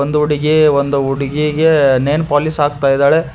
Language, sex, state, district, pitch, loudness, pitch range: Kannada, male, Karnataka, Koppal, 145 Hz, -13 LUFS, 140-150 Hz